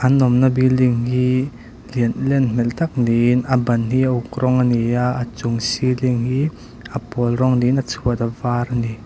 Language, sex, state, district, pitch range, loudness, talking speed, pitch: Mizo, male, Mizoram, Aizawl, 120-130 Hz, -18 LUFS, 210 wpm, 125 Hz